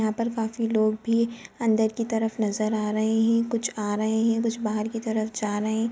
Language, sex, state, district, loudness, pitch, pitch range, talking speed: Hindi, female, Bihar, Jamui, -25 LUFS, 220 Hz, 215-230 Hz, 245 wpm